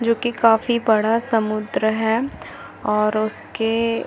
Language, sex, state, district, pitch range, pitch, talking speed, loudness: Hindi, female, Chhattisgarh, Bastar, 220-230 Hz, 225 Hz, 135 wpm, -20 LUFS